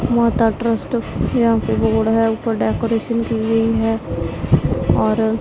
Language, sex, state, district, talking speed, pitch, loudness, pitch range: Hindi, female, Punjab, Pathankot, 135 wpm, 225 Hz, -18 LUFS, 220-230 Hz